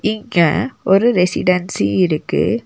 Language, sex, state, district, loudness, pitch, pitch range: Tamil, female, Tamil Nadu, Nilgiris, -16 LUFS, 180 Hz, 175-215 Hz